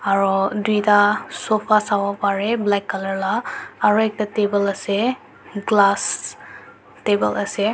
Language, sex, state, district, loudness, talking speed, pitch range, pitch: Nagamese, male, Nagaland, Dimapur, -19 LUFS, 115 wpm, 195-215 Hz, 205 Hz